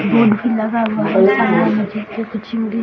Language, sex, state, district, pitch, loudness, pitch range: Hindi, female, Bihar, Sitamarhi, 220 Hz, -16 LUFS, 215-230 Hz